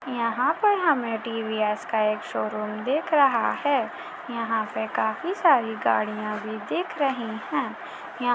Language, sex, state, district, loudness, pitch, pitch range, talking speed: Hindi, female, Maharashtra, Chandrapur, -25 LUFS, 230 Hz, 215-280 Hz, 150 wpm